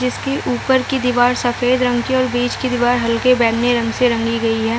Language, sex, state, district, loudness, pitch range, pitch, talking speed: Hindi, female, Bihar, Gaya, -16 LUFS, 235-255 Hz, 245 Hz, 225 wpm